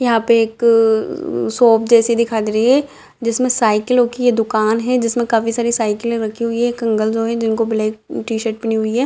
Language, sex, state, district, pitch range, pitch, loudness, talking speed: Hindi, female, Bihar, Madhepura, 220-235 Hz, 230 Hz, -16 LUFS, 220 wpm